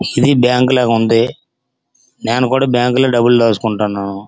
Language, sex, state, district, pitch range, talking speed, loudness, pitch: Telugu, male, Andhra Pradesh, Srikakulam, 115-125 Hz, 140 wpm, -13 LUFS, 120 Hz